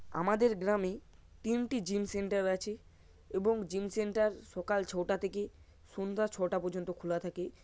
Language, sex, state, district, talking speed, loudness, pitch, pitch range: Bengali, male, West Bengal, Paschim Medinipur, 135 wpm, -35 LUFS, 195 Hz, 180-210 Hz